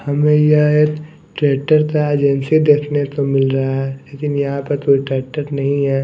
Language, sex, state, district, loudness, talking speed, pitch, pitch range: Hindi, male, Odisha, Nuapada, -16 LUFS, 180 wpm, 145 Hz, 140-150 Hz